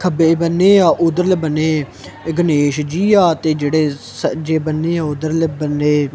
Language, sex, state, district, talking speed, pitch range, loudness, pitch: Punjabi, male, Punjab, Kapurthala, 135 wpm, 150-170 Hz, -15 LUFS, 155 Hz